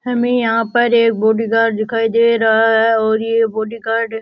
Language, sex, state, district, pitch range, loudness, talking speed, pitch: Rajasthani, male, Rajasthan, Nagaur, 225-230 Hz, -15 LUFS, 185 wpm, 225 Hz